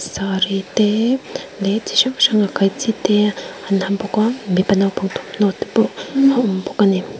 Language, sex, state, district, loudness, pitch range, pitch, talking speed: Mizo, female, Mizoram, Aizawl, -17 LUFS, 195-225 Hz, 205 Hz, 190 wpm